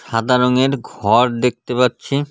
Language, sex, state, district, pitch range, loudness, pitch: Bengali, male, West Bengal, Cooch Behar, 120-130 Hz, -17 LUFS, 125 Hz